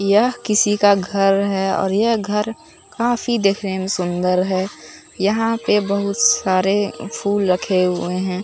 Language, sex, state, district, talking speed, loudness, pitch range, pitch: Hindi, male, Bihar, Katihar, 150 wpm, -18 LUFS, 190-210 Hz, 200 Hz